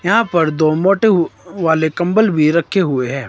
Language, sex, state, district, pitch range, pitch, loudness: Hindi, male, Himachal Pradesh, Shimla, 155-190 Hz, 170 Hz, -15 LUFS